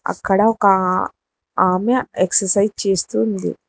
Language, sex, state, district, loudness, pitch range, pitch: Telugu, female, Telangana, Hyderabad, -17 LUFS, 185-200 Hz, 195 Hz